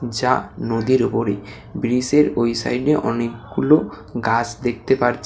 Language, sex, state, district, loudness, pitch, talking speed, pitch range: Bengali, male, West Bengal, Alipurduar, -20 LUFS, 120 Hz, 115 wpm, 115-130 Hz